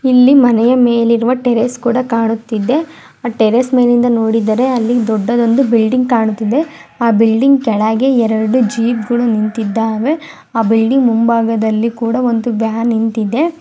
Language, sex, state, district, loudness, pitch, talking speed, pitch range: Kannada, female, Karnataka, Mysore, -13 LUFS, 235 Hz, 100 wpm, 225-250 Hz